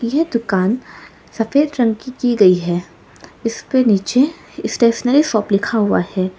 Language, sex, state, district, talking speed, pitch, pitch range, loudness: Hindi, female, Arunachal Pradesh, Lower Dibang Valley, 140 wpm, 230 Hz, 200-255 Hz, -17 LUFS